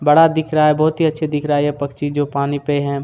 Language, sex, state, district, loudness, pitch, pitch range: Hindi, male, Chhattisgarh, Kabirdham, -17 LUFS, 145 Hz, 145-155 Hz